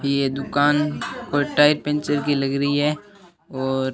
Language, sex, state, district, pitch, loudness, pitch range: Hindi, male, Rajasthan, Bikaner, 145 Hz, -21 LUFS, 140-150 Hz